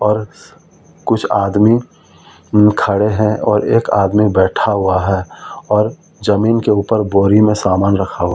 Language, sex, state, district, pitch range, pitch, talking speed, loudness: Hindi, male, Delhi, New Delhi, 95-105 Hz, 105 Hz, 145 wpm, -14 LUFS